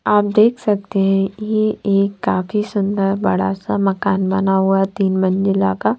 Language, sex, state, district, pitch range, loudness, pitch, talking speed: Hindi, female, Punjab, Fazilka, 190-210 Hz, -17 LUFS, 195 Hz, 160 wpm